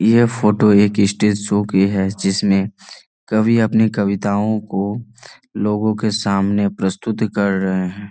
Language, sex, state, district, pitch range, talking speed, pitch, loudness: Hindi, male, Jharkhand, Jamtara, 100-110 Hz, 135 wpm, 105 Hz, -17 LUFS